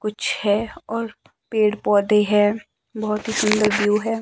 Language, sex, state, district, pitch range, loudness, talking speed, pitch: Hindi, male, Himachal Pradesh, Shimla, 210-225 Hz, -20 LUFS, 155 wpm, 215 Hz